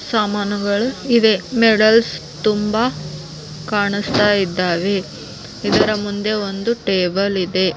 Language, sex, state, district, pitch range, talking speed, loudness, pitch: Kannada, female, Karnataka, Bellary, 185-215 Hz, 95 wpm, -17 LUFS, 205 Hz